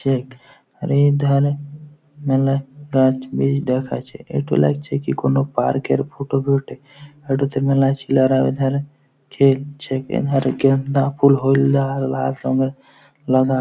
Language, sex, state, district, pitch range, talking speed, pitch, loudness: Bengali, male, West Bengal, Jhargram, 130-140 Hz, 130 wpm, 135 Hz, -19 LUFS